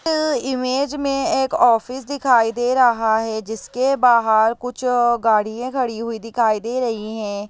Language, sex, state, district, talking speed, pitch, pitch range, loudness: Hindi, female, Bihar, Begusarai, 150 wpm, 240 Hz, 225-255 Hz, -19 LUFS